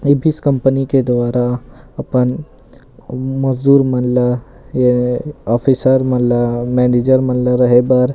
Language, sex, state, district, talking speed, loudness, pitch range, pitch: Chhattisgarhi, male, Chhattisgarh, Rajnandgaon, 120 wpm, -15 LUFS, 125-135 Hz, 125 Hz